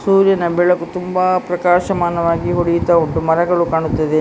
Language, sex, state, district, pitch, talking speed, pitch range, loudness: Kannada, female, Karnataka, Dakshina Kannada, 175 Hz, 115 wpm, 170-180 Hz, -16 LUFS